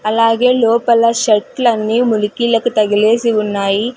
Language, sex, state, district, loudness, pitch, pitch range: Telugu, female, Andhra Pradesh, Sri Satya Sai, -13 LUFS, 230 Hz, 215-235 Hz